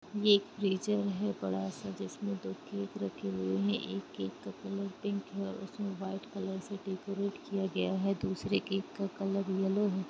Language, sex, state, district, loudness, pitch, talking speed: Hindi, female, Jharkhand, Jamtara, -35 LUFS, 195 Hz, 190 wpm